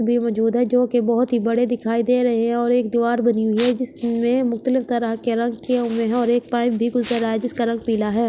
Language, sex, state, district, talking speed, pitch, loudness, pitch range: Hindi, female, Delhi, New Delhi, 265 wpm, 235 Hz, -20 LUFS, 230-245 Hz